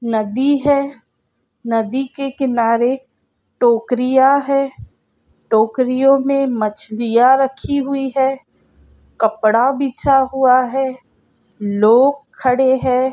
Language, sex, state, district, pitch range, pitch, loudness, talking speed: Hindi, female, Andhra Pradesh, Krishna, 235-275 Hz, 260 Hz, -16 LUFS, 40 wpm